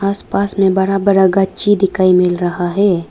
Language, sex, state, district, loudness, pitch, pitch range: Hindi, female, Arunachal Pradesh, Lower Dibang Valley, -13 LUFS, 190 Hz, 180-195 Hz